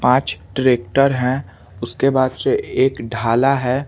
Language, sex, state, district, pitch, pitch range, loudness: Hindi, male, Bihar, Kaimur, 125 Hz, 115-135 Hz, -18 LUFS